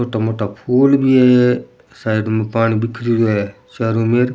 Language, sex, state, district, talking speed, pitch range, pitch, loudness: Rajasthani, male, Rajasthan, Churu, 165 wpm, 110-125 Hz, 115 Hz, -16 LUFS